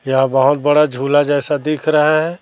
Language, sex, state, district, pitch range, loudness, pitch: Hindi, male, Chhattisgarh, Raipur, 140-150 Hz, -15 LUFS, 145 Hz